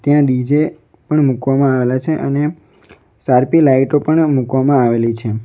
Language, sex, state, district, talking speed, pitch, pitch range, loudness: Gujarati, male, Gujarat, Valsad, 145 wpm, 135 Hz, 125-150 Hz, -14 LUFS